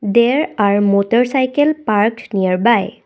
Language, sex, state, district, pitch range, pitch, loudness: English, female, Assam, Kamrup Metropolitan, 200-255 Hz, 230 Hz, -15 LUFS